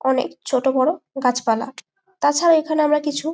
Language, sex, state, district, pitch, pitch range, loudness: Bengali, female, West Bengal, Malda, 290 Hz, 260-315 Hz, -19 LUFS